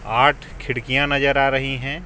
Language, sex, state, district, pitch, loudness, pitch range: Hindi, male, Jharkhand, Ranchi, 135 Hz, -19 LUFS, 135-140 Hz